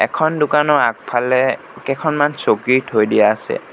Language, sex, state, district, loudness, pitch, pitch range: Assamese, male, Assam, Sonitpur, -16 LUFS, 135 Hz, 120-150 Hz